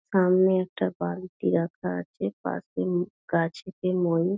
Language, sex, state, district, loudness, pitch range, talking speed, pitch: Bengali, female, West Bengal, Dakshin Dinajpur, -27 LUFS, 165-185 Hz, 125 wpm, 175 Hz